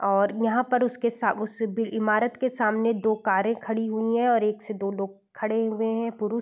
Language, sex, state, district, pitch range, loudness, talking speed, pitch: Hindi, female, Uttar Pradesh, Varanasi, 215-230 Hz, -25 LUFS, 225 wpm, 225 Hz